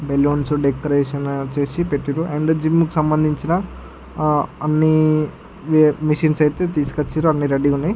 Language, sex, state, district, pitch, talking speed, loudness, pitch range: Telugu, male, Andhra Pradesh, Chittoor, 150 Hz, 130 wpm, -18 LUFS, 145-155 Hz